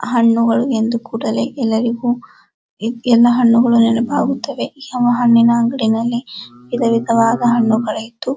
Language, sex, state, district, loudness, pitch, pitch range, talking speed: Kannada, male, Karnataka, Dharwad, -15 LUFS, 235 Hz, 230-245 Hz, 110 wpm